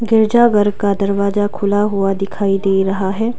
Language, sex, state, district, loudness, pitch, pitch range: Hindi, female, Arunachal Pradesh, Lower Dibang Valley, -15 LUFS, 200 Hz, 195-220 Hz